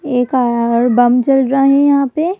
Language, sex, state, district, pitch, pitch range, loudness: Hindi, female, Madhya Pradesh, Bhopal, 265 Hz, 245-280 Hz, -13 LUFS